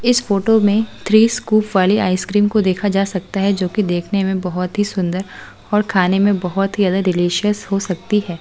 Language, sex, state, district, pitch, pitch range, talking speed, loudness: Hindi, female, Delhi, New Delhi, 195 Hz, 185-210 Hz, 205 wpm, -17 LUFS